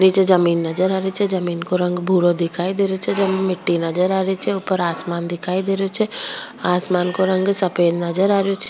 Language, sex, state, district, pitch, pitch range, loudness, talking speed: Rajasthani, female, Rajasthan, Churu, 185 Hz, 175-190 Hz, -19 LUFS, 235 wpm